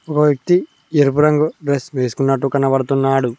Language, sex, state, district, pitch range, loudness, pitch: Telugu, male, Telangana, Mahabubabad, 135-150 Hz, -17 LUFS, 140 Hz